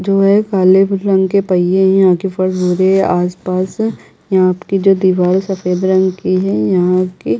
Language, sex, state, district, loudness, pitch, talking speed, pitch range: Hindi, female, Chhattisgarh, Bastar, -13 LUFS, 185 Hz, 180 wpm, 180-195 Hz